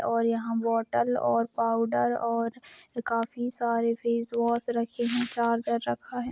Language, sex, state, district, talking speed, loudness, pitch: Hindi, female, Jharkhand, Sahebganj, 150 wpm, -28 LUFS, 230 Hz